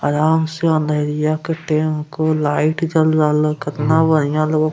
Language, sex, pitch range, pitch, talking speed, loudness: Angika, male, 150-160 Hz, 155 Hz, 165 wpm, -17 LUFS